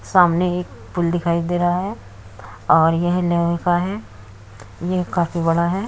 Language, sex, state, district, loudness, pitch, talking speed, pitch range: Hindi, female, Uttar Pradesh, Muzaffarnagar, -19 LUFS, 170 Hz, 155 wpm, 110-180 Hz